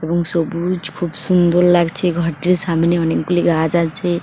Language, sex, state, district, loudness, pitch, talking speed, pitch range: Bengali, female, West Bengal, Paschim Medinipur, -17 LUFS, 170 Hz, 140 wpm, 165-175 Hz